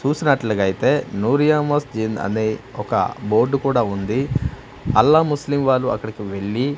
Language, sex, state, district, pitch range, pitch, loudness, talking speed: Telugu, male, Andhra Pradesh, Manyam, 110-140 Hz, 130 Hz, -19 LUFS, 135 wpm